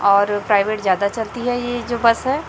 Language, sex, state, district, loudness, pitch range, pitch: Hindi, male, Chhattisgarh, Raipur, -19 LUFS, 205-245 Hz, 225 Hz